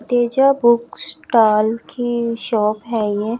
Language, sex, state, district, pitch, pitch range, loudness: Hindi, female, Chhattisgarh, Raipur, 230 Hz, 220-240 Hz, -17 LUFS